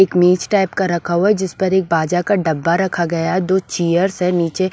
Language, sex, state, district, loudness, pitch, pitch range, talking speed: Hindi, female, Maharashtra, Washim, -17 LUFS, 180 Hz, 170-190 Hz, 255 wpm